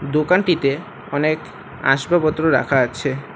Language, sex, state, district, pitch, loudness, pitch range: Bengali, male, West Bengal, Alipurduar, 150 Hz, -19 LUFS, 135-160 Hz